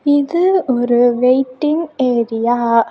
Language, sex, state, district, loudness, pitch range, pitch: Tamil, female, Tamil Nadu, Kanyakumari, -15 LUFS, 240-300 Hz, 255 Hz